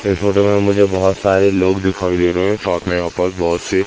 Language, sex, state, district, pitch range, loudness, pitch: Hindi, male, Madhya Pradesh, Katni, 90-100 Hz, -15 LUFS, 95 Hz